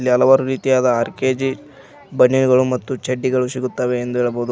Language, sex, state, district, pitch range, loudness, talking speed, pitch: Kannada, male, Karnataka, Koppal, 125-130 Hz, -17 LUFS, 135 wpm, 130 Hz